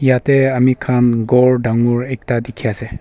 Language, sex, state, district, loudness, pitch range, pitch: Nagamese, male, Nagaland, Kohima, -15 LUFS, 120-130 Hz, 125 Hz